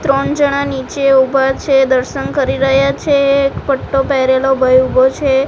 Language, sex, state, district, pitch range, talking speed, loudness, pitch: Gujarati, female, Gujarat, Gandhinagar, 265-275 Hz, 165 wpm, -13 LUFS, 270 Hz